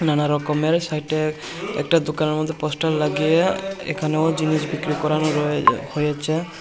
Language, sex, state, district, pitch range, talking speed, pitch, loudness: Bengali, male, Tripura, Unakoti, 150-160 Hz, 125 wpm, 155 Hz, -21 LUFS